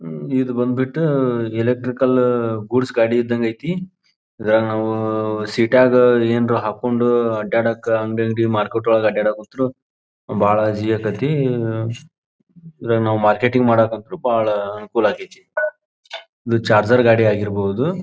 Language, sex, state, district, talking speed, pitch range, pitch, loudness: Kannada, male, Karnataka, Belgaum, 100 wpm, 110-130 Hz, 115 Hz, -18 LUFS